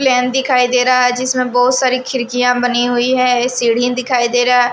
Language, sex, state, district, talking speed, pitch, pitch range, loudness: Hindi, female, Maharashtra, Washim, 215 wpm, 250 Hz, 245-255 Hz, -14 LUFS